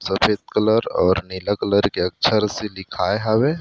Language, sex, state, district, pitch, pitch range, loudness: Chhattisgarhi, male, Chhattisgarh, Rajnandgaon, 105 Hz, 95-110 Hz, -20 LUFS